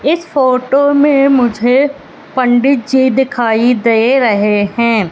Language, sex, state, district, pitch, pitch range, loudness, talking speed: Hindi, female, Madhya Pradesh, Katni, 255 Hz, 235-275 Hz, -11 LUFS, 115 wpm